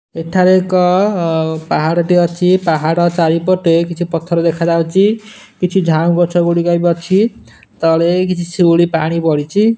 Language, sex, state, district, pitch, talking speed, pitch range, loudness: Odia, male, Odisha, Nuapada, 170 Hz, 140 wpm, 165-185 Hz, -13 LUFS